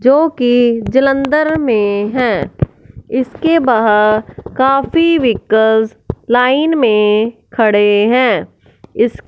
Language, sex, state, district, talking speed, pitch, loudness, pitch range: Hindi, female, Punjab, Fazilka, 90 wpm, 245 Hz, -13 LUFS, 220-270 Hz